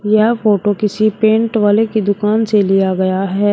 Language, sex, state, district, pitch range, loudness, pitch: Hindi, female, Uttar Pradesh, Shamli, 200-215 Hz, -14 LUFS, 210 Hz